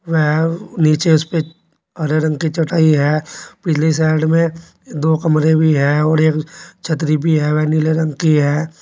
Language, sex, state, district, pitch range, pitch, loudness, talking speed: Hindi, male, Uttar Pradesh, Saharanpur, 155-160 Hz, 155 Hz, -15 LUFS, 175 wpm